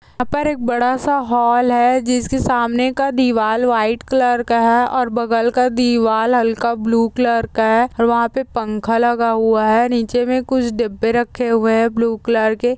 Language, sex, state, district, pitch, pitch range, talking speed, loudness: Hindi, female, Uttar Pradesh, Jyotiba Phule Nagar, 240 Hz, 230-250 Hz, 190 wpm, -16 LUFS